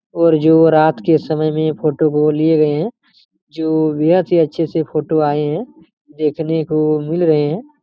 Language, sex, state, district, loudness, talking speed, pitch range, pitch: Hindi, male, Chhattisgarh, Raigarh, -15 LUFS, 185 wpm, 155-165 Hz, 160 Hz